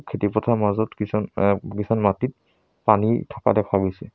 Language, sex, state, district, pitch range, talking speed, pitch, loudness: Assamese, male, Assam, Sonitpur, 100-110 Hz, 160 wpm, 105 Hz, -22 LUFS